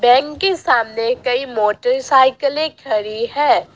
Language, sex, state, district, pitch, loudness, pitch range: Hindi, female, Assam, Sonitpur, 250 Hz, -17 LUFS, 235-280 Hz